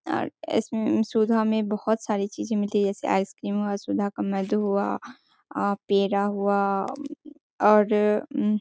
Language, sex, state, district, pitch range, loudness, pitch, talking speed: Hindi, female, Bihar, Sitamarhi, 200-220 Hz, -25 LUFS, 210 Hz, 155 wpm